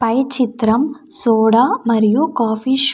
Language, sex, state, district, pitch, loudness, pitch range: Telugu, female, Andhra Pradesh, Anantapur, 245 Hz, -15 LUFS, 230-270 Hz